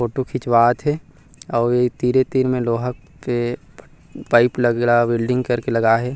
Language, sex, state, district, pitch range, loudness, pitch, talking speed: Chhattisgarhi, male, Chhattisgarh, Rajnandgaon, 120-130 Hz, -19 LUFS, 125 Hz, 155 wpm